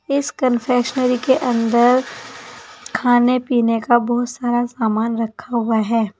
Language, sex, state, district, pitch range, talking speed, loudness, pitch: Hindi, female, Uttar Pradesh, Saharanpur, 230-250 Hz, 125 wpm, -18 LUFS, 240 Hz